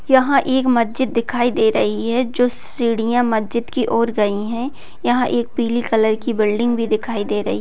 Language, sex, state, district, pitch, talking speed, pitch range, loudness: Hindi, female, Bihar, Bhagalpur, 235 Hz, 190 wpm, 220-245 Hz, -18 LUFS